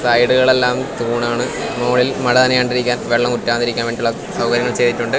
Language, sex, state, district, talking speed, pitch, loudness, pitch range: Malayalam, male, Kerala, Kasaragod, 150 wpm, 120 Hz, -16 LUFS, 120-125 Hz